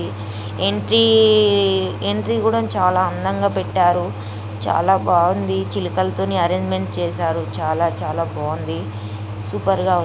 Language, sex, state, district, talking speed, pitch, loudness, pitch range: Telugu, female, Telangana, Nalgonda, 105 wpm, 105 Hz, -19 LUFS, 95-105 Hz